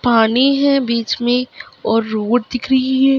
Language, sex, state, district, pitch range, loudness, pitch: Hindi, female, Chhattisgarh, Raigarh, 230-265 Hz, -16 LUFS, 250 Hz